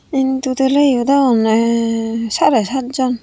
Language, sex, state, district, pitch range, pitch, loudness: Chakma, female, Tripura, Unakoti, 230-265 Hz, 255 Hz, -15 LUFS